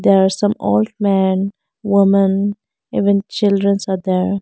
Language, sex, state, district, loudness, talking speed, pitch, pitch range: English, female, Arunachal Pradesh, Lower Dibang Valley, -16 LUFS, 135 wpm, 200 Hz, 190-205 Hz